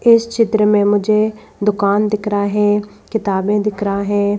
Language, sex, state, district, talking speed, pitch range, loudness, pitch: Hindi, female, Madhya Pradesh, Bhopal, 165 wpm, 205-215 Hz, -16 LUFS, 210 Hz